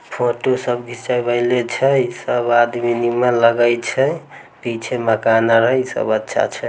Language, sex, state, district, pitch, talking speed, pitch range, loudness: Maithili, male, Bihar, Samastipur, 120 Hz, 170 wpm, 120-125 Hz, -17 LUFS